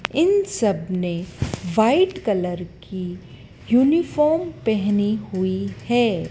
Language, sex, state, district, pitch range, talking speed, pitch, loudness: Hindi, female, Madhya Pradesh, Dhar, 185-270 Hz, 95 wpm, 205 Hz, -21 LUFS